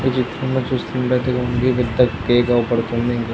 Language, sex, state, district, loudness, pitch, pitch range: Telugu, male, Telangana, Karimnagar, -19 LUFS, 125 Hz, 120-130 Hz